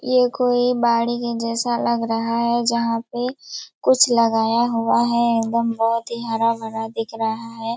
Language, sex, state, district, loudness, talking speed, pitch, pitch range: Hindi, female, Chhattisgarh, Raigarh, -20 LUFS, 160 wpm, 230 Hz, 230-240 Hz